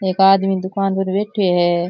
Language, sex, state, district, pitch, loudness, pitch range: Rajasthani, male, Rajasthan, Churu, 195 Hz, -17 LUFS, 185-195 Hz